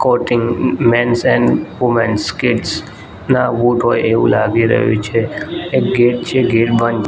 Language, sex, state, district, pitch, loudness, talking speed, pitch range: Gujarati, male, Gujarat, Gandhinagar, 115 Hz, -14 LUFS, 155 wpm, 110-120 Hz